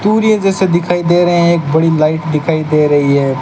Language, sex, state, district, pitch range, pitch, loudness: Hindi, male, Rajasthan, Bikaner, 155-175 Hz, 165 Hz, -12 LUFS